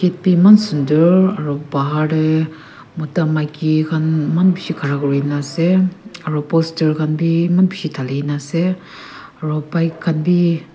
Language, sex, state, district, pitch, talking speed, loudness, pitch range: Nagamese, female, Nagaland, Kohima, 160 Hz, 145 wpm, -16 LUFS, 150-175 Hz